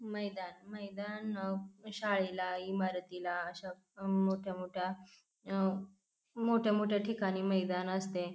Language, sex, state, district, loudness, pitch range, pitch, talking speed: Marathi, female, Maharashtra, Pune, -36 LUFS, 185-205 Hz, 195 Hz, 95 wpm